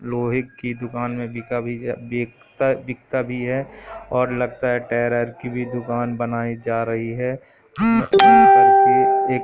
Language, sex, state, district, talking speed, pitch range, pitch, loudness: Hindi, male, Madhya Pradesh, Katni, 140 wpm, 120-135 Hz, 125 Hz, -19 LUFS